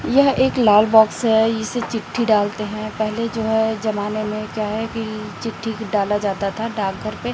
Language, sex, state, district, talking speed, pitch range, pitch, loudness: Hindi, female, Chhattisgarh, Raipur, 195 wpm, 210-225 Hz, 220 Hz, -20 LUFS